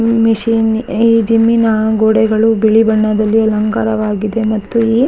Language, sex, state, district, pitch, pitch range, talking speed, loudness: Kannada, female, Karnataka, Raichur, 220 Hz, 215-225 Hz, 140 wpm, -12 LUFS